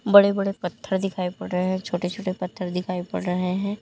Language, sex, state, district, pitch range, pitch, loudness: Hindi, female, Uttar Pradesh, Lalitpur, 180-195 Hz, 185 Hz, -25 LUFS